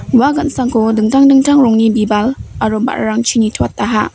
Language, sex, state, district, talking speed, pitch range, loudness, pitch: Garo, female, Meghalaya, West Garo Hills, 130 wpm, 220-270 Hz, -12 LUFS, 235 Hz